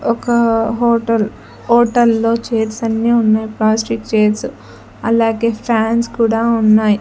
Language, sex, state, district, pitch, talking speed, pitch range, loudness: Telugu, female, Andhra Pradesh, Sri Satya Sai, 230 Hz, 105 wpm, 220-235 Hz, -15 LUFS